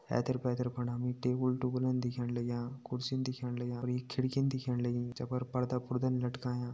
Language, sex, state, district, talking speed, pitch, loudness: Hindi, male, Uttarakhand, Tehri Garhwal, 185 wpm, 125 Hz, -35 LUFS